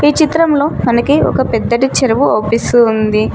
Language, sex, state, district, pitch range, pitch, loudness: Telugu, female, Telangana, Mahabubabad, 225-295 Hz, 240 Hz, -12 LUFS